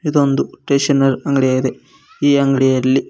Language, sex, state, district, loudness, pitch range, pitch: Kannada, male, Karnataka, Koppal, -16 LUFS, 130-140 Hz, 135 Hz